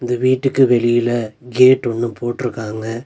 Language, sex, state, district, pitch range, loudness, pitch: Tamil, male, Tamil Nadu, Nilgiris, 120-125 Hz, -16 LUFS, 120 Hz